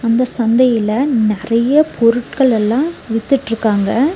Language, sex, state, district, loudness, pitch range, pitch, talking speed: Tamil, female, Tamil Nadu, Nilgiris, -14 LUFS, 225-265 Hz, 230 Hz, 85 wpm